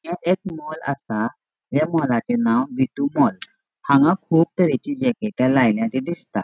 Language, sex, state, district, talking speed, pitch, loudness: Konkani, female, Goa, North and South Goa, 150 wpm, 175 Hz, -21 LUFS